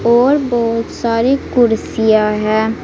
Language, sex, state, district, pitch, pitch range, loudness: Hindi, female, Uttar Pradesh, Saharanpur, 230 Hz, 220-240 Hz, -14 LUFS